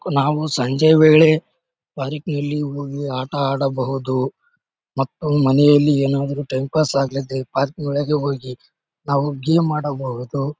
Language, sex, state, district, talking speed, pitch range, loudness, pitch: Kannada, male, Karnataka, Bellary, 120 wpm, 135-150 Hz, -19 LUFS, 140 Hz